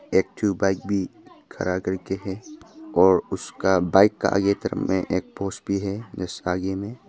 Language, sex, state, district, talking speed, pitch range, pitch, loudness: Hindi, male, Arunachal Pradesh, Papum Pare, 185 wpm, 95-100 Hz, 100 Hz, -24 LUFS